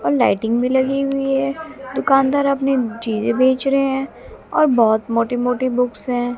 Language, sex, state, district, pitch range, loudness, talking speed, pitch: Hindi, female, Haryana, Jhajjar, 235-275 Hz, -18 LUFS, 170 wpm, 260 Hz